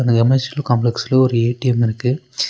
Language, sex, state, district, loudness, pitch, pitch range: Tamil, male, Tamil Nadu, Nilgiris, -17 LUFS, 125 Hz, 120-130 Hz